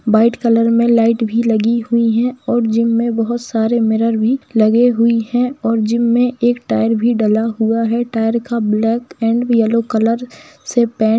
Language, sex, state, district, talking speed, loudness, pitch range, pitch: Hindi, female, Bihar, Jamui, 195 wpm, -15 LUFS, 225-235 Hz, 230 Hz